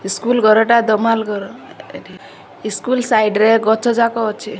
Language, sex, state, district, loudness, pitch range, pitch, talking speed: Odia, female, Odisha, Malkangiri, -15 LUFS, 215-235 Hz, 220 Hz, 145 wpm